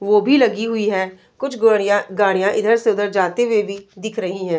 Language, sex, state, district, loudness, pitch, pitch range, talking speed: Hindi, female, Uttar Pradesh, Varanasi, -18 LUFS, 210 Hz, 195-225 Hz, 220 wpm